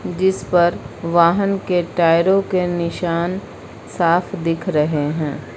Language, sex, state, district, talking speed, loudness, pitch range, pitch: Hindi, female, Uttar Pradesh, Lucknow, 120 wpm, -18 LUFS, 165-185 Hz, 170 Hz